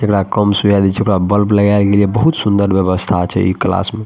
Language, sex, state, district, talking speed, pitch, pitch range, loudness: Maithili, male, Bihar, Madhepura, 265 wpm, 100 Hz, 95-105 Hz, -13 LUFS